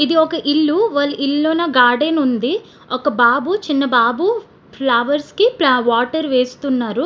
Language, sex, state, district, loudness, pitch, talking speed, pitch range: Telugu, female, Andhra Pradesh, Srikakulam, -16 LUFS, 285 Hz, 145 wpm, 250-320 Hz